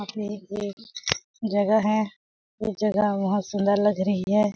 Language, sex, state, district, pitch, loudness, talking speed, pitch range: Hindi, female, Chhattisgarh, Balrampur, 205 Hz, -25 LUFS, 120 wpm, 200-215 Hz